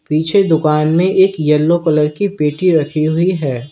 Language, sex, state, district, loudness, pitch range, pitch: Hindi, male, Uttar Pradesh, Lalitpur, -14 LUFS, 150-180 Hz, 155 Hz